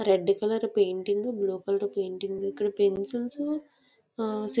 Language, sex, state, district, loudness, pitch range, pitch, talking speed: Telugu, female, Andhra Pradesh, Visakhapatnam, -29 LUFS, 195-225 Hz, 205 Hz, 145 wpm